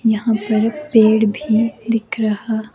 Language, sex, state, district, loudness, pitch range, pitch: Hindi, female, Himachal Pradesh, Shimla, -17 LUFS, 215-225 Hz, 220 Hz